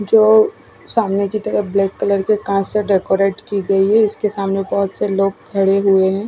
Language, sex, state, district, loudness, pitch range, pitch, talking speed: Hindi, female, Odisha, Khordha, -16 LUFS, 195-210 Hz, 200 Hz, 200 wpm